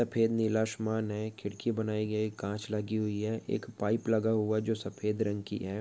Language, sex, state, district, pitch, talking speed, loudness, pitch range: Hindi, male, Uttarakhand, Tehri Garhwal, 110 Hz, 205 wpm, -32 LUFS, 105-110 Hz